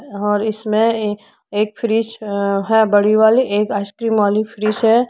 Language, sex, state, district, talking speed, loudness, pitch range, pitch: Hindi, female, Uttar Pradesh, Lucknow, 140 wpm, -17 LUFS, 205-225 Hz, 215 Hz